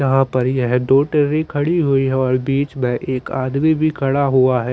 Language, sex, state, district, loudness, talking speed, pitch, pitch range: Hindi, male, Chandigarh, Chandigarh, -17 LUFS, 215 wpm, 135 Hz, 130-145 Hz